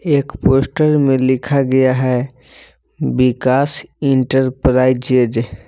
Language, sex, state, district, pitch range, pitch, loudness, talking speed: Hindi, male, Jharkhand, Palamu, 125-135 Hz, 130 Hz, -15 LUFS, 85 wpm